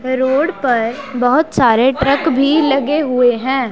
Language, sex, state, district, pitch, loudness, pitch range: Hindi, male, Punjab, Pathankot, 270 Hz, -14 LUFS, 250-280 Hz